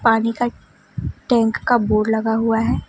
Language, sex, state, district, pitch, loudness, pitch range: Hindi, female, West Bengal, Alipurduar, 225 Hz, -19 LUFS, 225-240 Hz